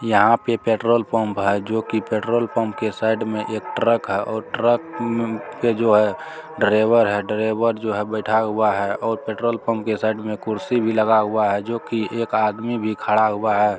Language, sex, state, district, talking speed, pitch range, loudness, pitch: Maithili, male, Bihar, Supaul, 210 wpm, 110-115 Hz, -20 LUFS, 110 Hz